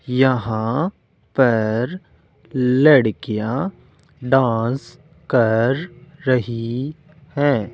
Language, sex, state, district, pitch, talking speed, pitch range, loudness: Hindi, male, Rajasthan, Jaipur, 130 Hz, 55 wpm, 115-145 Hz, -19 LUFS